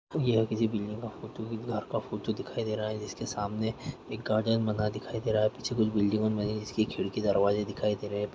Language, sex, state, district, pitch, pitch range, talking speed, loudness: Hindi, male, Bihar, Araria, 110 Hz, 105-115 Hz, 250 wpm, -31 LUFS